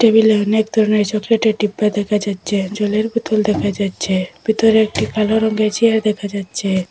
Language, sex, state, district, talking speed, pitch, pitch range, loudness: Bengali, female, Assam, Hailakandi, 155 wpm, 215 Hz, 205-220 Hz, -17 LUFS